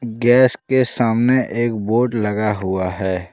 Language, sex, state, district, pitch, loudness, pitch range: Hindi, male, Jharkhand, Deoghar, 115 Hz, -18 LUFS, 105-120 Hz